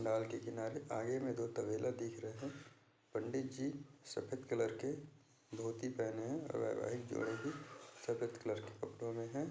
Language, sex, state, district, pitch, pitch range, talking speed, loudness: Hindi, male, Chhattisgarh, Bastar, 125 Hz, 115-140 Hz, 170 wpm, -43 LUFS